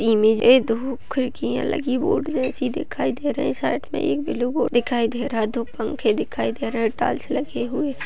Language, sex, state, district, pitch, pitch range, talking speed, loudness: Hindi, female, Uttar Pradesh, Hamirpur, 245 Hz, 230-270 Hz, 225 wpm, -22 LUFS